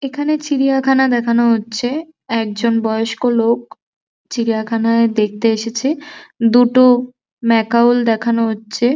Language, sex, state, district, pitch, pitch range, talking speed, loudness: Bengali, male, West Bengal, Jhargram, 235 Hz, 225-260 Hz, 95 wpm, -16 LUFS